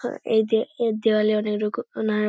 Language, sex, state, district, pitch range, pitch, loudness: Bengali, female, West Bengal, Paschim Medinipur, 215-225 Hz, 220 Hz, -23 LUFS